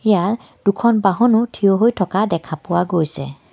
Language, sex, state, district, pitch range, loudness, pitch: Assamese, female, Assam, Kamrup Metropolitan, 175-225 Hz, -17 LUFS, 195 Hz